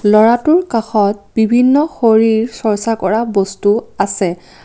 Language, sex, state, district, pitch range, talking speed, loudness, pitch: Assamese, female, Assam, Kamrup Metropolitan, 205-230 Hz, 105 wpm, -14 LUFS, 220 Hz